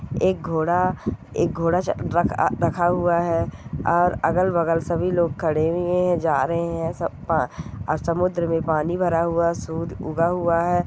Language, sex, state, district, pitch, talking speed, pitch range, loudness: Hindi, female, Goa, North and South Goa, 170 Hz, 165 wpm, 165-175 Hz, -22 LUFS